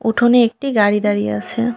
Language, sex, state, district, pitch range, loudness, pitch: Bengali, female, West Bengal, Alipurduar, 205-240 Hz, -16 LUFS, 225 Hz